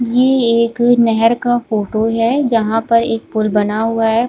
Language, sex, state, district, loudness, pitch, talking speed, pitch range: Hindi, female, Bihar, Supaul, -14 LUFS, 230 Hz, 180 wpm, 225-240 Hz